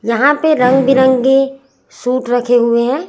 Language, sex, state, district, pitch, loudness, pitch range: Hindi, female, Chhattisgarh, Raipur, 260 Hz, -12 LUFS, 245-270 Hz